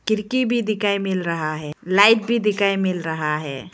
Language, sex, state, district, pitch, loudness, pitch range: Hindi, female, Arunachal Pradesh, Lower Dibang Valley, 195 Hz, -20 LUFS, 160-215 Hz